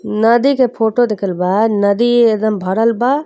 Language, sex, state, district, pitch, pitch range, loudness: Bhojpuri, female, Uttar Pradesh, Deoria, 225 Hz, 210-240 Hz, -14 LUFS